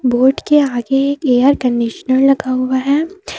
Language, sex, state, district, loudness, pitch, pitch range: Hindi, female, Jharkhand, Deoghar, -14 LUFS, 265 Hz, 255-285 Hz